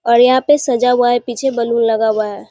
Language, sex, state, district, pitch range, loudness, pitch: Hindi, female, Bihar, Muzaffarpur, 230-250 Hz, -14 LUFS, 240 Hz